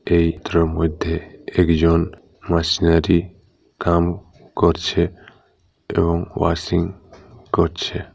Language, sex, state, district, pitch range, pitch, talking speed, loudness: Bengali, male, West Bengal, Paschim Medinipur, 85-95 Hz, 85 Hz, 80 wpm, -20 LUFS